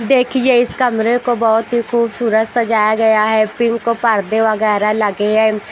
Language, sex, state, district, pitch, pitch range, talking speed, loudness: Hindi, female, Haryana, Jhajjar, 225 Hz, 215-235 Hz, 170 wpm, -14 LUFS